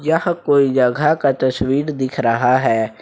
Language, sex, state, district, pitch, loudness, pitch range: Hindi, male, Jharkhand, Ranchi, 135 Hz, -17 LUFS, 125-150 Hz